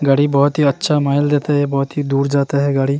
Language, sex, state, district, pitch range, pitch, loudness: Hindi, male, Uttarakhand, Tehri Garhwal, 140-145 Hz, 140 Hz, -16 LUFS